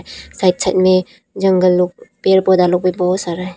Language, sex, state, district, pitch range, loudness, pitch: Hindi, female, Arunachal Pradesh, Papum Pare, 180-190 Hz, -15 LUFS, 185 Hz